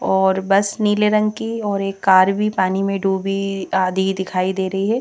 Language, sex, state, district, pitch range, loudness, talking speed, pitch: Hindi, female, Madhya Pradesh, Bhopal, 190-205 Hz, -18 LUFS, 205 wpm, 195 Hz